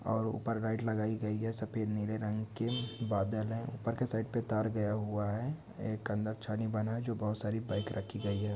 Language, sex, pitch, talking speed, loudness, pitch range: Hindi, male, 110 Hz, 205 wpm, -36 LUFS, 105-115 Hz